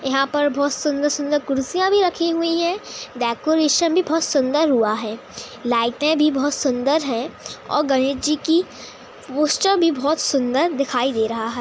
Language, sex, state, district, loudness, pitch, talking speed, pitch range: Hindi, female, Uttar Pradesh, Hamirpur, -20 LUFS, 285 Hz, 165 wpm, 255-315 Hz